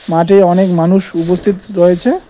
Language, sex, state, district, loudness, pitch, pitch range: Bengali, male, West Bengal, Cooch Behar, -11 LUFS, 180 Hz, 175-195 Hz